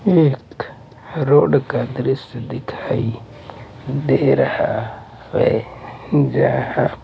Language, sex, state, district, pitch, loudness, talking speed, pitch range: Hindi, male, Maharashtra, Mumbai Suburban, 125 Hz, -18 LUFS, 75 wpm, 115-135 Hz